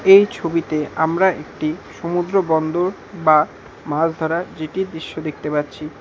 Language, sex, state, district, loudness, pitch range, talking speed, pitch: Bengali, male, West Bengal, Alipurduar, -20 LUFS, 155-180 Hz, 130 wpm, 160 Hz